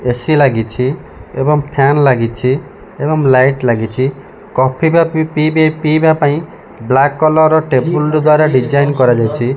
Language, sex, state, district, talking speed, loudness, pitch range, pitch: Odia, male, Odisha, Malkangiri, 125 wpm, -12 LUFS, 130-155 Hz, 140 Hz